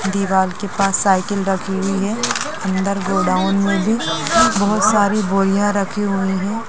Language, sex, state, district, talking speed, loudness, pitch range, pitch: Hindi, female, Bihar, Gaya, 150 wpm, -17 LUFS, 195-205 Hz, 200 Hz